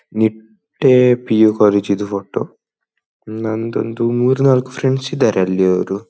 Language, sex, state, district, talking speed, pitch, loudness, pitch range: Kannada, male, Karnataka, Dakshina Kannada, 120 wpm, 110 Hz, -16 LUFS, 105-125 Hz